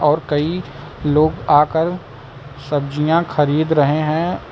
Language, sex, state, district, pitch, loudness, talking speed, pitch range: Hindi, male, Uttar Pradesh, Lucknow, 150 Hz, -17 LUFS, 105 wpm, 145-160 Hz